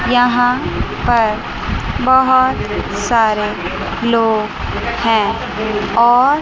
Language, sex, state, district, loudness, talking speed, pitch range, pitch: Hindi, male, Chandigarh, Chandigarh, -15 LUFS, 75 wpm, 215-245 Hz, 235 Hz